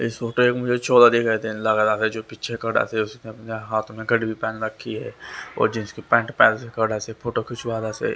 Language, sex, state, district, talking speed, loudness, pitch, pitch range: Hindi, male, Haryana, Rohtak, 250 wpm, -22 LUFS, 110 Hz, 110-120 Hz